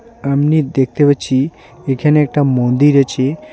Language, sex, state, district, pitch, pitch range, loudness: Bengali, male, West Bengal, Alipurduar, 140 Hz, 135-150 Hz, -14 LUFS